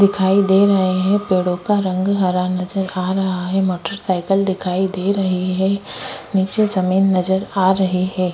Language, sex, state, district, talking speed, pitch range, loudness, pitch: Hindi, female, Chhattisgarh, Korba, 165 wpm, 185-195 Hz, -18 LUFS, 190 Hz